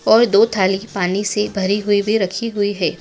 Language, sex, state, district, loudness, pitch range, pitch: Hindi, female, Madhya Pradesh, Dhar, -17 LUFS, 195-215 Hz, 205 Hz